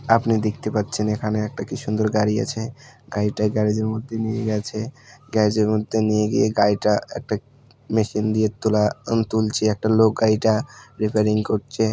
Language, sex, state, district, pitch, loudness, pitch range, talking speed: Bengali, male, West Bengal, Malda, 110 Hz, -22 LUFS, 105-110 Hz, 155 wpm